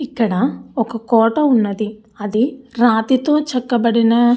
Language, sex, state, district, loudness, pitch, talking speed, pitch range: Telugu, female, Andhra Pradesh, Anantapur, -17 LUFS, 235 Hz, 95 wpm, 225-255 Hz